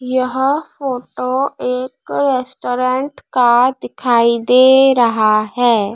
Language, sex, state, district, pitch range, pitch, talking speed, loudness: Hindi, female, Madhya Pradesh, Dhar, 240-265 Hz, 255 Hz, 90 wpm, -15 LUFS